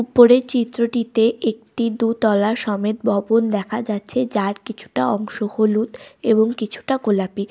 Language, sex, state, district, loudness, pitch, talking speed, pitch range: Bengali, female, West Bengal, Malda, -19 LUFS, 220 Hz, 120 wpm, 210-235 Hz